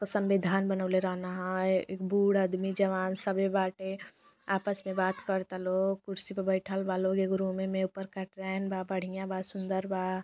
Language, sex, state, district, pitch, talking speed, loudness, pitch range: Bhojpuri, female, Uttar Pradesh, Deoria, 190 Hz, 170 wpm, -31 LUFS, 185-195 Hz